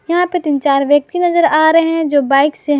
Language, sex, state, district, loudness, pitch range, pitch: Hindi, female, Jharkhand, Garhwa, -13 LUFS, 285-340 Hz, 305 Hz